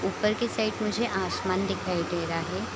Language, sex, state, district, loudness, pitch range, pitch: Hindi, female, Bihar, Kishanganj, -28 LUFS, 175-215 Hz, 195 Hz